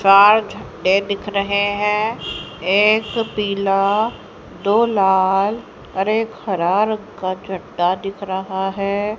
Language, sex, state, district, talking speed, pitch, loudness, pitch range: Hindi, female, Haryana, Jhajjar, 120 wpm, 200 Hz, -18 LUFS, 190-210 Hz